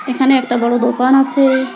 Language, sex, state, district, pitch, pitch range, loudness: Bengali, female, West Bengal, Alipurduar, 260 Hz, 245-270 Hz, -13 LUFS